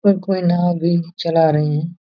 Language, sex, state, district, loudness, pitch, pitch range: Hindi, male, Jharkhand, Jamtara, -17 LUFS, 170 Hz, 165-175 Hz